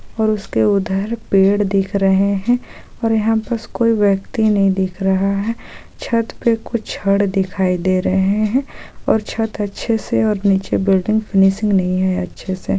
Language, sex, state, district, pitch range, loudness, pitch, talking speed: Hindi, female, Jharkhand, Sahebganj, 190-220 Hz, -17 LUFS, 200 Hz, 170 wpm